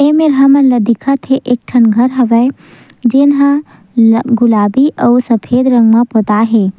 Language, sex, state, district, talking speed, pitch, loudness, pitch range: Chhattisgarhi, female, Chhattisgarh, Sukma, 160 wpm, 245 Hz, -10 LUFS, 230-270 Hz